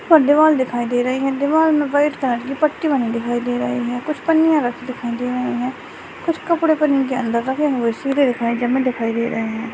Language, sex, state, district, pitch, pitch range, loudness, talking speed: Hindi, female, West Bengal, Dakshin Dinajpur, 260 Hz, 240-300 Hz, -18 LUFS, 220 wpm